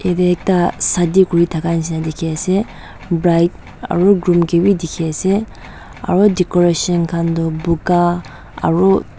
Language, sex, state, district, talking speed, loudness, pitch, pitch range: Nagamese, female, Nagaland, Dimapur, 135 wpm, -15 LUFS, 175 Hz, 165-185 Hz